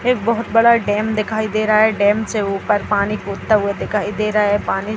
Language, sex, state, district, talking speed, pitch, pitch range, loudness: Hindi, female, Bihar, Jahanabad, 240 wpm, 215 Hz, 205-220 Hz, -17 LUFS